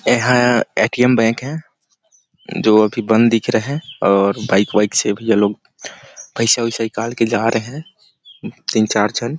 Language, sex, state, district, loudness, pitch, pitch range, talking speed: Hindi, male, Chhattisgarh, Sarguja, -16 LUFS, 115 Hz, 110-125 Hz, 200 wpm